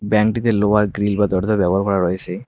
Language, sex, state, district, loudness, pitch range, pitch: Bengali, male, West Bengal, Cooch Behar, -18 LUFS, 95-105 Hz, 105 Hz